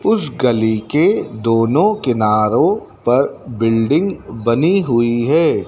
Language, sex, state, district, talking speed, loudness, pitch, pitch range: Hindi, male, Madhya Pradesh, Dhar, 105 wpm, -16 LUFS, 120 Hz, 115-155 Hz